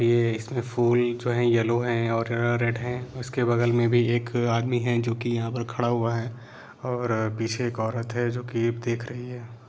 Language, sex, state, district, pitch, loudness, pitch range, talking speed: Hindi, male, Bihar, Saran, 120 Hz, -26 LUFS, 115-120 Hz, 210 wpm